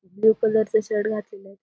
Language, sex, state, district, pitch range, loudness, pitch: Marathi, female, Maharashtra, Aurangabad, 205-220 Hz, -22 LUFS, 215 Hz